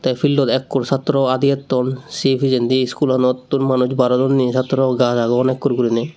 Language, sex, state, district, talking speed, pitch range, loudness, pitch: Chakma, male, Tripura, Dhalai, 155 wpm, 125-135 Hz, -17 LUFS, 130 Hz